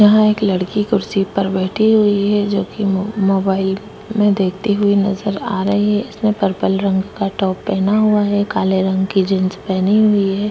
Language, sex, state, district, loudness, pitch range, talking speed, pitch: Hindi, female, Maharashtra, Chandrapur, -16 LUFS, 195-210 Hz, 195 wpm, 200 Hz